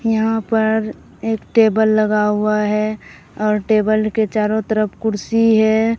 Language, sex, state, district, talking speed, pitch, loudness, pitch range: Hindi, female, Bihar, Katihar, 140 wpm, 215 Hz, -17 LUFS, 215-220 Hz